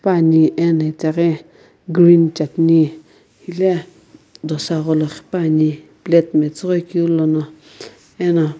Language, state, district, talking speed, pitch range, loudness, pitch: Sumi, Nagaland, Kohima, 100 wpm, 155-170 Hz, -16 LUFS, 165 Hz